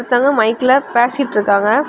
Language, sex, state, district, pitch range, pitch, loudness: Tamil, female, Tamil Nadu, Kanyakumari, 220-275 Hz, 245 Hz, -14 LUFS